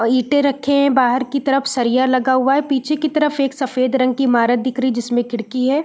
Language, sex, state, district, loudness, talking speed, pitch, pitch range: Hindi, female, Uttarakhand, Uttarkashi, -17 LUFS, 245 wpm, 260 Hz, 250-275 Hz